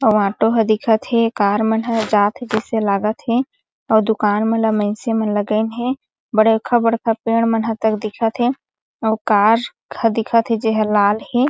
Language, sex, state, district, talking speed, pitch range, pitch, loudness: Chhattisgarhi, female, Chhattisgarh, Sarguja, 195 wpm, 215-230 Hz, 220 Hz, -17 LUFS